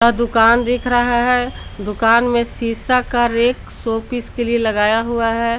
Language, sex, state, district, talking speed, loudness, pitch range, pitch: Hindi, female, Jharkhand, Garhwa, 160 wpm, -17 LUFS, 230-245 Hz, 235 Hz